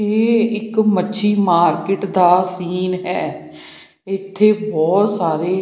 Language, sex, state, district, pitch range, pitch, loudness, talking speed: Punjabi, female, Punjab, Pathankot, 180-210 Hz, 195 Hz, -17 LUFS, 105 wpm